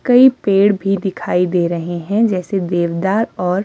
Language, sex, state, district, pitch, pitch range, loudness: Hindi, female, Himachal Pradesh, Shimla, 190 Hz, 175-205 Hz, -16 LUFS